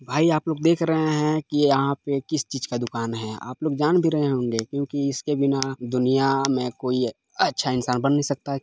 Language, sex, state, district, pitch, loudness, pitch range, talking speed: Hindi, male, Chhattisgarh, Balrampur, 140 Hz, -23 LUFS, 125-150 Hz, 210 wpm